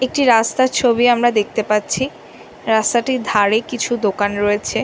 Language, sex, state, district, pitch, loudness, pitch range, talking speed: Bengali, female, West Bengal, North 24 Parganas, 230 Hz, -16 LUFS, 210-250 Hz, 135 wpm